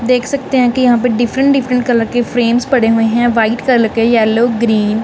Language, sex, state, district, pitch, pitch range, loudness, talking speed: Hindi, female, Punjab, Kapurthala, 240 Hz, 230-250 Hz, -12 LUFS, 240 wpm